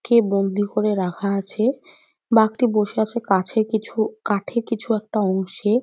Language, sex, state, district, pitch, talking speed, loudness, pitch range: Bengali, female, West Bengal, North 24 Parganas, 215 Hz, 145 wpm, -21 LUFS, 200-230 Hz